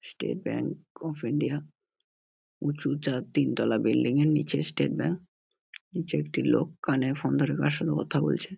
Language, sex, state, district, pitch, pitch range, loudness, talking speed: Bengali, male, West Bengal, North 24 Parganas, 145 Hz, 130-155 Hz, -28 LUFS, 170 wpm